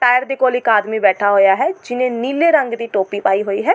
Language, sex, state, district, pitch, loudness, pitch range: Punjabi, female, Delhi, New Delhi, 235 Hz, -16 LUFS, 205-255 Hz